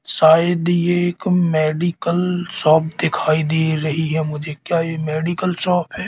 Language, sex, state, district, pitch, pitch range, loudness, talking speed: Hindi, male, Madhya Pradesh, Katni, 165 Hz, 155-175 Hz, -18 LUFS, 150 wpm